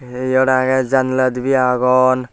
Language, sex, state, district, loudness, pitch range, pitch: Chakma, male, Tripura, Dhalai, -15 LUFS, 125-130 Hz, 130 Hz